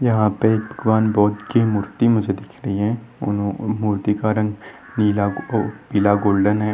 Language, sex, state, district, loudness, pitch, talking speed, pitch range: Hindi, male, Maharashtra, Nagpur, -20 LUFS, 105 Hz, 180 wpm, 100-110 Hz